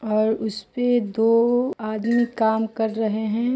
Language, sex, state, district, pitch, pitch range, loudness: Hindi, female, Bihar, Saran, 220 Hz, 215-235 Hz, -22 LUFS